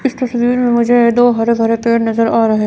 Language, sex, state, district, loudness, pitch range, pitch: Hindi, female, Chandigarh, Chandigarh, -13 LUFS, 230-245 Hz, 235 Hz